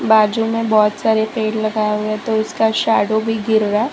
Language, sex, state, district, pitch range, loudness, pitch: Hindi, female, Gujarat, Valsad, 215-220 Hz, -17 LUFS, 220 Hz